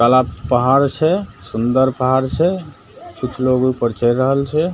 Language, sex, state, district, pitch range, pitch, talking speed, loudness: Maithili, male, Bihar, Begusarai, 120-140 Hz, 130 Hz, 175 wpm, -17 LUFS